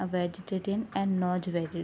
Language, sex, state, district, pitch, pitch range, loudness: Hindi, female, Uttar Pradesh, Ghazipur, 185 Hz, 175-195 Hz, -31 LUFS